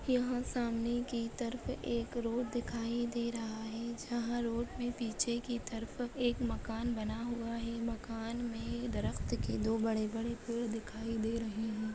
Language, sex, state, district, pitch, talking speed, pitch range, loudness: Hindi, female, Maharashtra, Solapur, 230 Hz, 155 wpm, 225-240 Hz, -37 LUFS